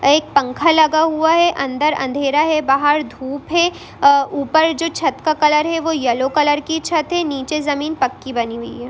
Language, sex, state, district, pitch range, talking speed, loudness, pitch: Hindi, female, Bihar, Sitamarhi, 275-320 Hz, 195 wpm, -16 LUFS, 300 Hz